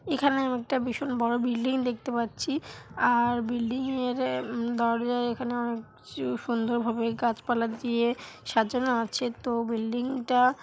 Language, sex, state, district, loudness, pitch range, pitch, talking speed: Bengali, female, West Bengal, Paschim Medinipur, -28 LUFS, 235-250 Hz, 240 Hz, 140 wpm